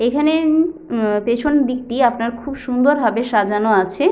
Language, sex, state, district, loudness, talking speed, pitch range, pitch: Bengali, female, West Bengal, Jhargram, -17 LUFS, 145 wpm, 230-290 Hz, 245 Hz